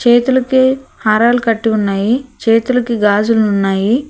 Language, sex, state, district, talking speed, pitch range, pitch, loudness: Telugu, female, Telangana, Hyderabad, 100 wpm, 215-250 Hz, 230 Hz, -13 LUFS